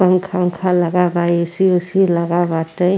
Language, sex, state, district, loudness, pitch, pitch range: Bhojpuri, female, Uttar Pradesh, Ghazipur, -16 LUFS, 180 Hz, 170-185 Hz